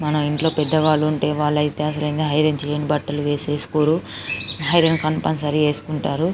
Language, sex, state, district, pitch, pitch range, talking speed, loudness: Telugu, female, Telangana, Karimnagar, 150 Hz, 150-155 Hz, 125 wpm, -20 LUFS